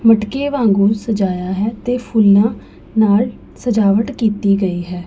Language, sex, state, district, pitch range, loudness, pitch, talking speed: Punjabi, female, Punjab, Pathankot, 200-230 Hz, -16 LUFS, 215 Hz, 130 wpm